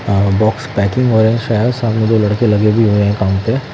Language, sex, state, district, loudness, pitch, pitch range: Hindi, male, Haryana, Jhajjar, -13 LUFS, 110 Hz, 105-115 Hz